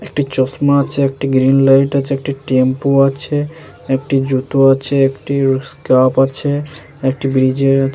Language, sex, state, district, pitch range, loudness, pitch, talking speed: Bengali, male, West Bengal, Jalpaiguri, 135-140 Hz, -14 LUFS, 135 Hz, 130 wpm